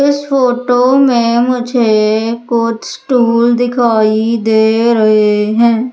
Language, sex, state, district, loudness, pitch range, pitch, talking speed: Hindi, female, Madhya Pradesh, Umaria, -11 LUFS, 220-245 Hz, 235 Hz, 100 wpm